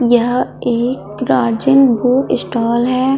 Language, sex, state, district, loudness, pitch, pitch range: Hindi, female, Chhattisgarh, Kabirdham, -14 LUFS, 245 Hz, 235-260 Hz